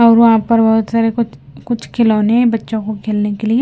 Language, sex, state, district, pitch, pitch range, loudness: Hindi, female, Himachal Pradesh, Shimla, 225 Hz, 215-230 Hz, -14 LUFS